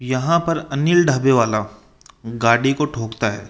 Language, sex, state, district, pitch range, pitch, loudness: Hindi, male, Rajasthan, Jaipur, 115-150 Hz, 130 Hz, -18 LUFS